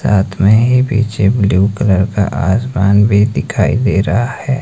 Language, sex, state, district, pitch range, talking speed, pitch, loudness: Hindi, male, Himachal Pradesh, Shimla, 100-120 Hz, 170 wpm, 105 Hz, -13 LUFS